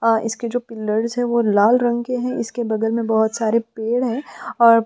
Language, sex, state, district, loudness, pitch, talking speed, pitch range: Hindi, female, Chhattisgarh, Sukma, -20 LUFS, 230 Hz, 220 wpm, 225-240 Hz